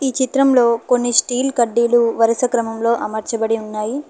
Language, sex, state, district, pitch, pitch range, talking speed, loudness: Telugu, female, Telangana, Hyderabad, 235 Hz, 230-255 Hz, 115 wpm, -17 LUFS